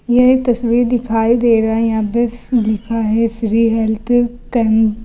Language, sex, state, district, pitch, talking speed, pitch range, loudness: Hindi, female, Uttar Pradesh, Lucknow, 230 Hz, 165 wpm, 225-240 Hz, -15 LUFS